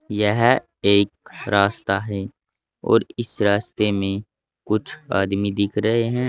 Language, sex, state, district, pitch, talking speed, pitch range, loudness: Hindi, male, Uttar Pradesh, Saharanpur, 105 Hz, 125 wpm, 100-120 Hz, -21 LUFS